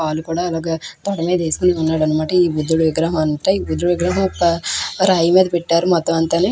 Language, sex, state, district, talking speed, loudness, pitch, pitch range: Telugu, female, Andhra Pradesh, Krishna, 195 wpm, -17 LUFS, 170 Hz, 160-180 Hz